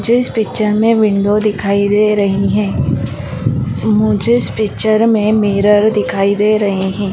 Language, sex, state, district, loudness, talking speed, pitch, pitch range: Hindi, female, Madhya Pradesh, Dhar, -13 LUFS, 150 wpm, 210 Hz, 195-215 Hz